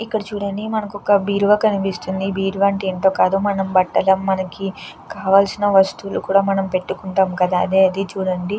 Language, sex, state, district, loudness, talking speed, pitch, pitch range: Telugu, female, Andhra Pradesh, Krishna, -18 LUFS, 145 wpm, 195 Hz, 190-200 Hz